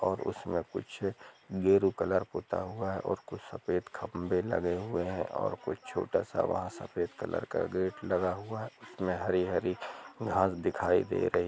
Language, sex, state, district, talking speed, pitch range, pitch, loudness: Hindi, male, Jharkhand, Jamtara, 180 wpm, 90-95 Hz, 95 Hz, -33 LUFS